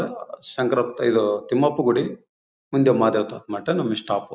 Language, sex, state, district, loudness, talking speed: Kannada, male, Karnataka, Bellary, -22 LUFS, 140 wpm